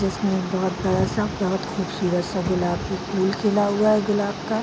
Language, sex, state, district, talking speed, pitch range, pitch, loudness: Hindi, female, Bihar, Araria, 210 wpm, 185-205 Hz, 190 Hz, -23 LUFS